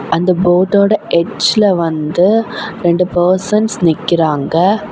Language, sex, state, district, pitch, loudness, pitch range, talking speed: Tamil, female, Tamil Nadu, Kanyakumari, 180 Hz, -13 LUFS, 170-205 Hz, 85 wpm